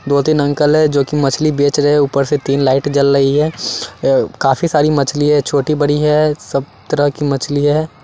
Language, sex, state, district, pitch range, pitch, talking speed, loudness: Hindi, male, Chandigarh, Chandigarh, 140-150 Hz, 145 Hz, 210 wpm, -14 LUFS